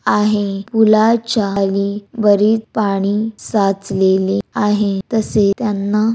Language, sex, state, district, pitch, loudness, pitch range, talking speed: Marathi, female, Maharashtra, Dhule, 205 Hz, -16 LUFS, 195-215 Hz, 80 wpm